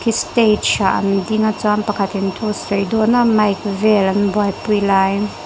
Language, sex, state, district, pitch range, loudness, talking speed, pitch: Mizo, female, Mizoram, Aizawl, 200-215 Hz, -16 LUFS, 185 wpm, 210 Hz